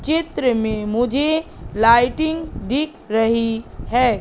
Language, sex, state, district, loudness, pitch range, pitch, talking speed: Hindi, female, Madhya Pradesh, Katni, -19 LUFS, 225-310 Hz, 245 Hz, 100 wpm